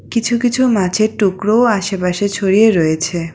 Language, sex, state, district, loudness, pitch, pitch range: Bengali, female, West Bengal, Kolkata, -14 LUFS, 205 Hz, 185-225 Hz